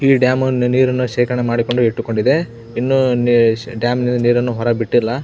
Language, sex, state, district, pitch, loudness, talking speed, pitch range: Kannada, male, Karnataka, Belgaum, 120 Hz, -16 LUFS, 150 wpm, 115-125 Hz